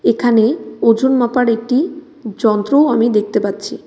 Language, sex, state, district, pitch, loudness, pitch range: Bengali, female, West Bengal, Cooch Behar, 235 Hz, -15 LUFS, 220-265 Hz